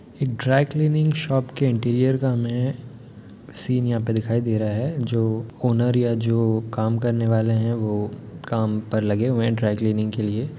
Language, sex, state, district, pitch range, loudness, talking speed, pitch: Hindi, male, Bihar, Muzaffarpur, 110-125 Hz, -22 LUFS, 175 wpm, 115 Hz